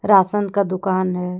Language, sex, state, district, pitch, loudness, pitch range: Hindi, female, Jharkhand, Deoghar, 190 Hz, -19 LUFS, 185-200 Hz